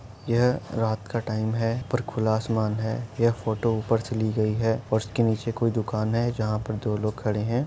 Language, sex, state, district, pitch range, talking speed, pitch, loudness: Hindi, male, Uttar Pradesh, Etah, 110-115 Hz, 220 wpm, 110 Hz, -26 LUFS